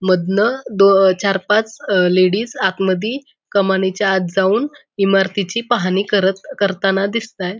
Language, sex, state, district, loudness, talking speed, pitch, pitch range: Marathi, female, Maharashtra, Pune, -16 LUFS, 120 wpm, 195 Hz, 190-220 Hz